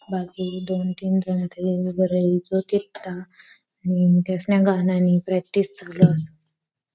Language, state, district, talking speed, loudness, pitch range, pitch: Bhili, Maharashtra, Dhule, 95 wpm, -22 LUFS, 180-190 Hz, 185 Hz